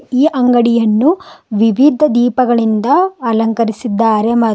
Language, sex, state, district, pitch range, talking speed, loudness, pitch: Kannada, female, Karnataka, Bidar, 225-265 Hz, 90 wpm, -13 LUFS, 235 Hz